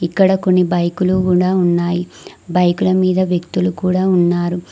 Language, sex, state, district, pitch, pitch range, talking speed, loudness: Telugu, female, Telangana, Mahabubabad, 180 Hz, 175-185 Hz, 125 wpm, -15 LUFS